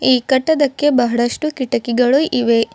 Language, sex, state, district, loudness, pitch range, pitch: Kannada, female, Karnataka, Bidar, -16 LUFS, 240-290 Hz, 255 Hz